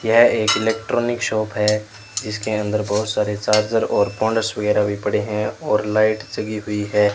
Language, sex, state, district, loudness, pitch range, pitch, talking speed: Hindi, male, Rajasthan, Bikaner, -20 LUFS, 105-110 Hz, 105 Hz, 175 wpm